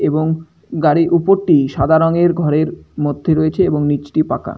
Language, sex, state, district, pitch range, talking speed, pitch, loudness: Bengali, male, West Bengal, Malda, 150-170 Hz, 145 wpm, 160 Hz, -15 LUFS